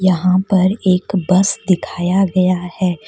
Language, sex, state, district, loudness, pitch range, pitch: Hindi, female, Jharkhand, Deoghar, -15 LUFS, 180-190 Hz, 185 Hz